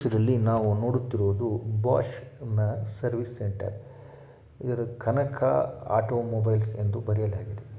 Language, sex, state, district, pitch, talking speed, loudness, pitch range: Kannada, male, Karnataka, Shimoga, 115 Hz, 75 wpm, -28 LUFS, 105-120 Hz